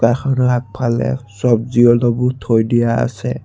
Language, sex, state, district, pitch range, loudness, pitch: Assamese, male, Assam, Sonitpur, 115-125 Hz, -16 LUFS, 120 Hz